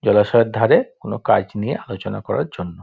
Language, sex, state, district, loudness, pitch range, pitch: Bengali, male, West Bengal, Dakshin Dinajpur, -19 LUFS, 100-115 Hz, 105 Hz